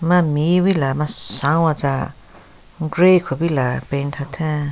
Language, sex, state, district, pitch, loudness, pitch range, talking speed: Rengma, female, Nagaland, Kohima, 155 Hz, -16 LUFS, 140-170 Hz, 115 wpm